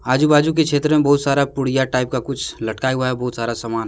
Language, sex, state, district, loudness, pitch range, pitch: Hindi, male, Jharkhand, Deoghar, -18 LUFS, 125-145 Hz, 130 Hz